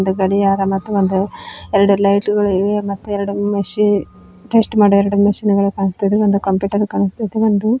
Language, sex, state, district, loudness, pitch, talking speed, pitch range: Kannada, female, Karnataka, Koppal, -16 LUFS, 200 Hz, 130 wpm, 195-205 Hz